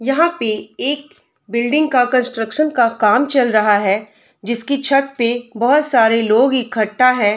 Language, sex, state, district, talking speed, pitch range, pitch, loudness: Hindi, female, Bihar, Darbhanga, 155 wpm, 220-275 Hz, 245 Hz, -16 LUFS